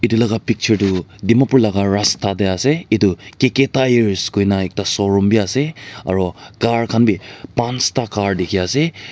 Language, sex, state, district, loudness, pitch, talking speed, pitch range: Nagamese, male, Nagaland, Dimapur, -17 LUFS, 110 Hz, 160 wpm, 100-120 Hz